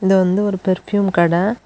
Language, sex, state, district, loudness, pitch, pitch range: Tamil, female, Tamil Nadu, Kanyakumari, -17 LUFS, 190 Hz, 185-205 Hz